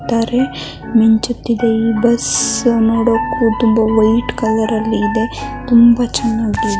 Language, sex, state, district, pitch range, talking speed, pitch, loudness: Kannada, male, Karnataka, Mysore, 220-235 Hz, 115 wpm, 225 Hz, -14 LUFS